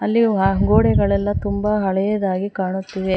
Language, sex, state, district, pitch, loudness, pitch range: Kannada, female, Karnataka, Bangalore, 195 Hz, -19 LUFS, 190-205 Hz